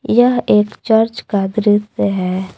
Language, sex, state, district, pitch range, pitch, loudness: Hindi, female, Jharkhand, Palamu, 200-230 Hz, 210 Hz, -15 LUFS